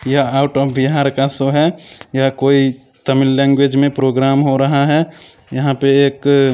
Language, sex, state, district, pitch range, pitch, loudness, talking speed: Maithili, male, Bihar, Samastipur, 135-140 Hz, 140 Hz, -14 LUFS, 175 wpm